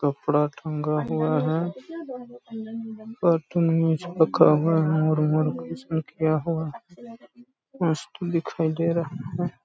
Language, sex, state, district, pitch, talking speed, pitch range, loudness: Hindi, male, Chhattisgarh, Balrampur, 165 Hz, 110 wpm, 155-180 Hz, -24 LUFS